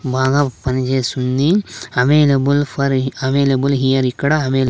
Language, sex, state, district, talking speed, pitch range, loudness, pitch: Telugu, male, Andhra Pradesh, Sri Satya Sai, 100 wpm, 130-140 Hz, -16 LUFS, 135 Hz